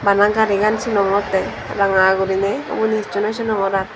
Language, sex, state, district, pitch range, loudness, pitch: Chakma, female, Tripura, Dhalai, 195-215 Hz, -18 LUFS, 200 Hz